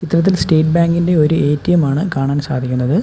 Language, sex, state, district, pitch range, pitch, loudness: Malayalam, male, Kerala, Kollam, 145-170 Hz, 160 Hz, -15 LUFS